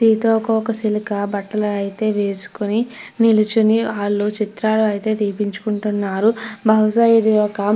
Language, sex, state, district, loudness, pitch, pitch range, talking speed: Telugu, female, Andhra Pradesh, Krishna, -18 LUFS, 215 Hz, 205-220 Hz, 110 wpm